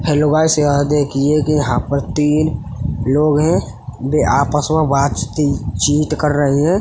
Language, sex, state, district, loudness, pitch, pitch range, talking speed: Hindi, male, Uttar Pradesh, Hamirpur, -16 LUFS, 145 Hz, 140-150 Hz, 160 wpm